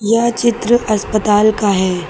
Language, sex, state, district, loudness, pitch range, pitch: Hindi, female, Uttar Pradesh, Lucknow, -14 LUFS, 205-235 Hz, 215 Hz